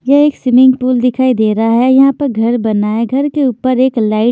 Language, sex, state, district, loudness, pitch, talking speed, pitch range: Hindi, female, Maharashtra, Washim, -11 LUFS, 255 Hz, 265 wpm, 225-265 Hz